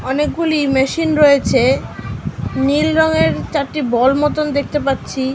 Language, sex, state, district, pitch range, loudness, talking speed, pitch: Bengali, female, West Bengal, North 24 Parganas, 270-305 Hz, -16 LUFS, 110 wpm, 290 Hz